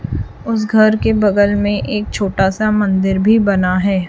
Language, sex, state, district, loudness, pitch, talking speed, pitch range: Hindi, female, Chhattisgarh, Raipur, -15 LUFS, 200 Hz, 175 wpm, 190-215 Hz